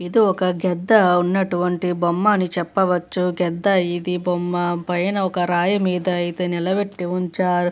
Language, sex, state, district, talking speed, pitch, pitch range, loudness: Telugu, female, Andhra Pradesh, Visakhapatnam, 130 wpm, 180 Hz, 175-185 Hz, -20 LUFS